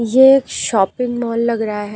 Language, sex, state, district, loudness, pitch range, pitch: Hindi, female, Uttar Pradesh, Lucknow, -15 LUFS, 215-250 Hz, 235 Hz